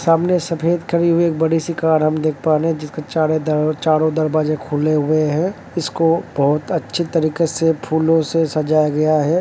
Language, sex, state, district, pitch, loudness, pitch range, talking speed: Hindi, male, Uttar Pradesh, Jalaun, 155 Hz, -17 LUFS, 155-165 Hz, 195 wpm